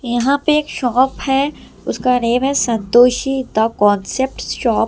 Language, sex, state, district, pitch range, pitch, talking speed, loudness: Hindi, female, Delhi, New Delhi, 240-270 Hz, 255 Hz, 160 wpm, -16 LUFS